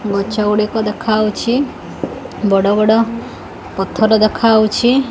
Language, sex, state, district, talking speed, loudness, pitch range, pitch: Odia, female, Odisha, Khordha, 80 wpm, -15 LUFS, 210-230 Hz, 215 Hz